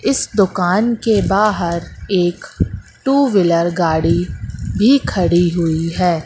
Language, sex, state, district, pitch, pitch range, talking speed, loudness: Hindi, female, Madhya Pradesh, Katni, 175 Hz, 165-205 Hz, 115 wpm, -16 LUFS